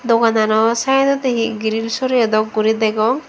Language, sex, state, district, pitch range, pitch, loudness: Chakma, female, Tripura, Dhalai, 220-250 Hz, 225 Hz, -16 LUFS